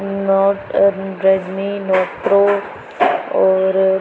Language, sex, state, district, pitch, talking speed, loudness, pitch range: Hindi, female, Punjab, Pathankot, 195 Hz, 90 wpm, -16 LUFS, 190-195 Hz